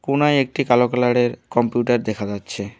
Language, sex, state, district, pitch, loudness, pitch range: Bengali, male, West Bengal, Alipurduar, 120 Hz, -19 LUFS, 110-130 Hz